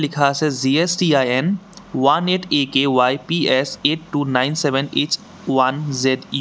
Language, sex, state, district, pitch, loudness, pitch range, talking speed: Assamese, male, Assam, Sonitpur, 145 Hz, -18 LUFS, 135-165 Hz, 140 wpm